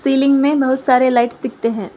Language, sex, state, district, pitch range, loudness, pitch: Hindi, female, Telangana, Hyderabad, 240-275 Hz, -15 LUFS, 260 Hz